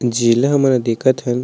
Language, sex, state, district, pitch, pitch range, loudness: Chhattisgarhi, male, Chhattisgarh, Sarguja, 125 Hz, 120-130 Hz, -15 LUFS